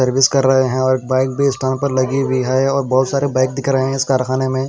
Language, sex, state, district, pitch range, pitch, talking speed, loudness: Hindi, male, Haryana, Rohtak, 130-135 Hz, 130 Hz, 270 wpm, -16 LUFS